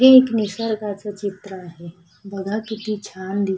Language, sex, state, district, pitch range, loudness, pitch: Marathi, female, Maharashtra, Sindhudurg, 190-215 Hz, -22 LUFS, 205 Hz